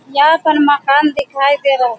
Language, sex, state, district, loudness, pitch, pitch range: Hindi, female, Bihar, Sitamarhi, -12 LUFS, 285 Hz, 275-295 Hz